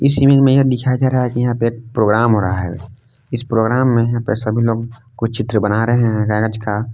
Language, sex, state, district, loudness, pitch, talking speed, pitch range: Hindi, male, Jharkhand, Palamu, -16 LUFS, 115 Hz, 260 wpm, 110-125 Hz